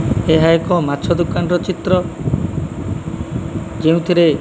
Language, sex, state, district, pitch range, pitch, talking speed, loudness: Odia, male, Odisha, Malkangiri, 145-175 Hz, 165 Hz, 95 wpm, -17 LUFS